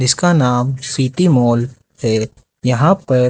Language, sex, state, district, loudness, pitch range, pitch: Hindi, male, Rajasthan, Jaipur, -15 LUFS, 120-135 Hz, 125 Hz